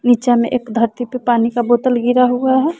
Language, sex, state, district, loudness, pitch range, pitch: Hindi, female, Bihar, West Champaran, -15 LUFS, 240-255 Hz, 245 Hz